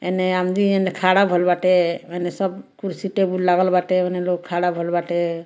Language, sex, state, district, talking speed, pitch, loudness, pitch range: Bhojpuri, female, Bihar, Muzaffarpur, 165 wpm, 180 Hz, -20 LUFS, 175-185 Hz